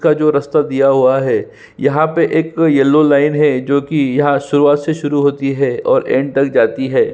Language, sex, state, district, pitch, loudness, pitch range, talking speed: Hindi, male, Chhattisgarh, Sukma, 145 Hz, -14 LUFS, 140-155 Hz, 210 wpm